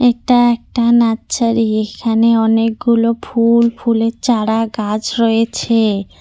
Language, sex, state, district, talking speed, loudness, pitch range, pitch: Bengali, female, West Bengal, Cooch Behar, 95 wpm, -14 LUFS, 225-235 Hz, 230 Hz